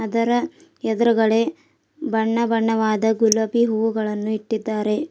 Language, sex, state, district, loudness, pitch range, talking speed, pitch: Kannada, female, Karnataka, Bidar, -20 LUFS, 220-235 Hz, 80 wpm, 225 Hz